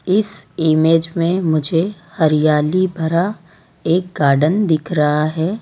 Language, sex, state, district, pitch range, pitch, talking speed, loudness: Hindi, female, Gujarat, Valsad, 155-180 Hz, 165 Hz, 115 wpm, -17 LUFS